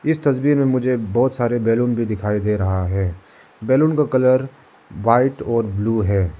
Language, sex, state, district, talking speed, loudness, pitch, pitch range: Hindi, male, Arunachal Pradesh, Lower Dibang Valley, 180 wpm, -19 LUFS, 115 Hz, 105-130 Hz